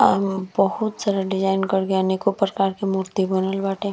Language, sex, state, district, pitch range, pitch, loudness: Bhojpuri, female, Uttar Pradesh, Gorakhpur, 190-195 Hz, 195 Hz, -22 LUFS